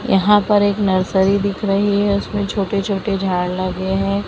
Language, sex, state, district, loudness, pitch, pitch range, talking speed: Hindi, female, Maharashtra, Mumbai Suburban, -17 LUFS, 200 Hz, 190-205 Hz, 180 wpm